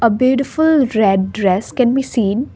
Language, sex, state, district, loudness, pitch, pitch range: English, female, Assam, Kamrup Metropolitan, -15 LUFS, 235 Hz, 205-265 Hz